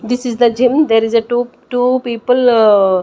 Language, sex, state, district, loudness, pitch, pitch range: English, female, Chandigarh, Chandigarh, -13 LUFS, 240 Hz, 225-250 Hz